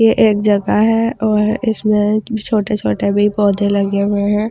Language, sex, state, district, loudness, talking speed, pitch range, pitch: Hindi, female, Delhi, New Delhi, -15 LUFS, 185 wpm, 205-220 Hz, 210 Hz